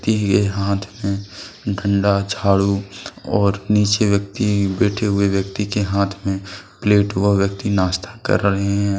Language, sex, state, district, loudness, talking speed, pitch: Hindi, male, Jharkhand, Deoghar, -19 LUFS, 140 wpm, 100 Hz